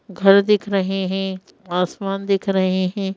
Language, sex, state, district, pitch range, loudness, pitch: Hindi, female, Madhya Pradesh, Bhopal, 190-195 Hz, -19 LUFS, 195 Hz